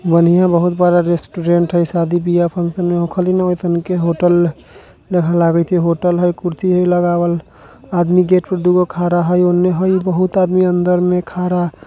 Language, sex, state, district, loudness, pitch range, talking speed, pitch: Maithili, male, Bihar, Vaishali, -15 LUFS, 175-180 Hz, 165 wpm, 175 Hz